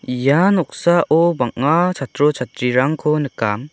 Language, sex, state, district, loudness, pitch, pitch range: Garo, male, Meghalaya, South Garo Hills, -17 LUFS, 150 Hz, 125-170 Hz